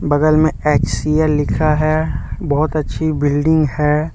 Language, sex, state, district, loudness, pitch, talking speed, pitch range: Hindi, male, Jharkhand, Deoghar, -16 LUFS, 155 Hz, 130 wpm, 150-155 Hz